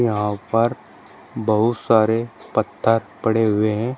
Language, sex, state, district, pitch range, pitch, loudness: Hindi, male, Uttar Pradesh, Shamli, 105-115 Hz, 110 Hz, -20 LUFS